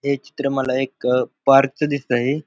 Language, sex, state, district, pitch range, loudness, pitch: Marathi, male, Maharashtra, Pune, 130-140 Hz, -19 LUFS, 135 Hz